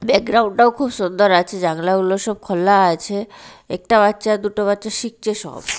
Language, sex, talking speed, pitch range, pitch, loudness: Bengali, female, 155 wpm, 190-220 Hz, 205 Hz, -17 LUFS